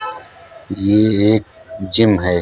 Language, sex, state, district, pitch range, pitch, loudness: Hindi, male, Uttar Pradesh, Hamirpur, 95-110 Hz, 105 Hz, -15 LUFS